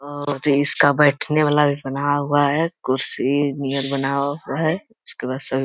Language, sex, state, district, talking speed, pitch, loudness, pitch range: Hindi, male, Bihar, Jamui, 180 wpm, 145 Hz, -20 LUFS, 140-150 Hz